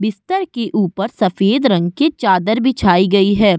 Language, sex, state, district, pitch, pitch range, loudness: Hindi, female, Uttar Pradesh, Budaun, 205 Hz, 195-240 Hz, -15 LUFS